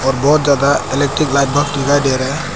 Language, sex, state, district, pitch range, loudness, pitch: Hindi, male, Arunachal Pradesh, Papum Pare, 135-145 Hz, -14 LUFS, 140 Hz